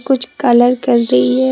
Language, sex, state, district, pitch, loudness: Hindi, female, Tripura, Dhalai, 240 Hz, -13 LUFS